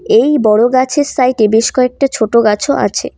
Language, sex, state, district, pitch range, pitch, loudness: Bengali, female, West Bengal, Cooch Behar, 225-280 Hz, 255 Hz, -12 LUFS